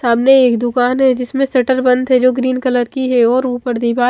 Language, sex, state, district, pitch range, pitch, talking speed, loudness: Hindi, female, Chandigarh, Chandigarh, 245-260 Hz, 255 Hz, 250 wpm, -14 LUFS